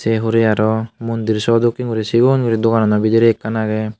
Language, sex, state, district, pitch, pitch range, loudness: Chakma, male, Tripura, Unakoti, 115 Hz, 110-115 Hz, -16 LUFS